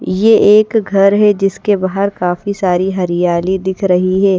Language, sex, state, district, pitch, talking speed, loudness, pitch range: Hindi, female, Bihar, Patna, 190 Hz, 165 wpm, -13 LUFS, 185-200 Hz